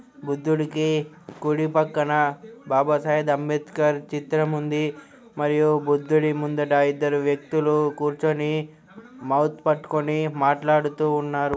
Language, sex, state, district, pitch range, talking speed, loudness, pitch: Telugu, male, Telangana, Karimnagar, 145-155 Hz, 95 wpm, -23 LUFS, 150 Hz